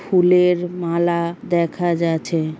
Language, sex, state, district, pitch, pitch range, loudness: Bengali, female, West Bengal, Paschim Medinipur, 170 Hz, 170-180 Hz, -19 LUFS